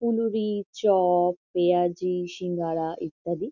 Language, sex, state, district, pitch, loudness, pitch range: Bengali, female, West Bengal, Kolkata, 180 Hz, -26 LUFS, 175-200 Hz